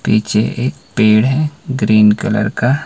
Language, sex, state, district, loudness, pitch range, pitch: Hindi, male, Himachal Pradesh, Shimla, -14 LUFS, 110-135 Hz, 120 Hz